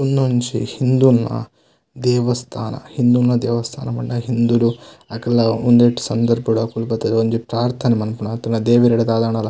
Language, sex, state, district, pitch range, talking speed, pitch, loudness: Tulu, male, Karnataka, Dakshina Kannada, 115-125 Hz, 115 wpm, 120 Hz, -18 LUFS